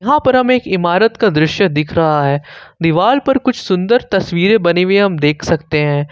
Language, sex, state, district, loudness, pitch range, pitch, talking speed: Hindi, male, Jharkhand, Ranchi, -13 LUFS, 155-225 Hz, 180 Hz, 205 wpm